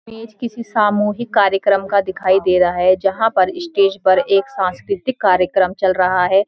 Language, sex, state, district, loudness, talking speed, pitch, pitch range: Hindi, female, Uttarakhand, Uttarkashi, -16 LUFS, 175 wpm, 195 Hz, 185-210 Hz